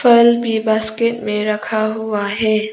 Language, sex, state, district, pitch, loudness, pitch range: Hindi, female, Arunachal Pradesh, Papum Pare, 220 Hz, -16 LUFS, 215-230 Hz